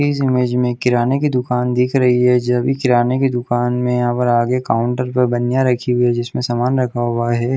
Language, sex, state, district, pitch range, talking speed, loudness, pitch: Hindi, male, Chhattisgarh, Bilaspur, 120-125 Hz, 240 wpm, -16 LUFS, 125 Hz